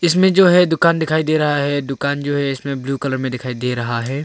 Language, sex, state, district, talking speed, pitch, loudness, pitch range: Hindi, male, Arunachal Pradesh, Longding, 265 wpm, 140 Hz, -17 LUFS, 130-160 Hz